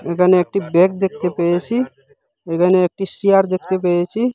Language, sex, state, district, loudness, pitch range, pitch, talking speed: Bengali, female, Assam, Hailakandi, -17 LUFS, 180-200 Hz, 185 Hz, 140 wpm